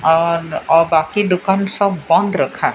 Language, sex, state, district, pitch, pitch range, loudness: Hindi, female, Odisha, Sambalpur, 180 Hz, 165-195 Hz, -16 LUFS